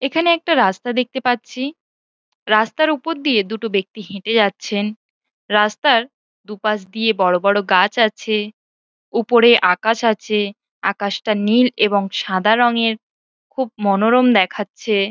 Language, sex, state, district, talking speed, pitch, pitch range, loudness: Bengali, female, West Bengal, Paschim Medinipur, 140 wpm, 220 Hz, 205-240 Hz, -17 LUFS